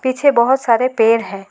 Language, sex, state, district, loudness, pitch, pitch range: Hindi, female, West Bengal, Alipurduar, -14 LUFS, 235 Hz, 225-260 Hz